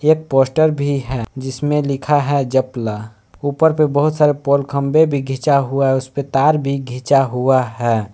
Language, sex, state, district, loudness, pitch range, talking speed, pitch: Hindi, male, Jharkhand, Palamu, -17 LUFS, 130-145 Hz, 175 wpm, 140 Hz